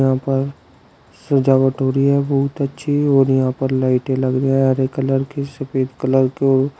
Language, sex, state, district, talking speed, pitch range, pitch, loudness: Hindi, male, Uttar Pradesh, Shamli, 175 wpm, 130-140 Hz, 135 Hz, -18 LUFS